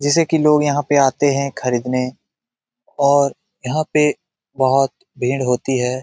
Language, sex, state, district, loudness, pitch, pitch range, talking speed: Hindi, male, Bihar, Jamui, -18 LUFS, 140 Hz, 125-145 Hz, 150 wpm